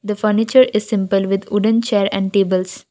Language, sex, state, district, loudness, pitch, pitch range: English, female, Assam, Kamrup Metropolitan, -16 LUFS, 205 Hz, 195-220 Hz